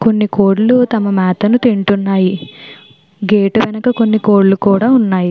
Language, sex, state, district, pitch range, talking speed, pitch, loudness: Telugu, female, Andhra Pradesh, Chittoor, 195-225 Hz, 135 wpm, 205 Hz, -12 LUFS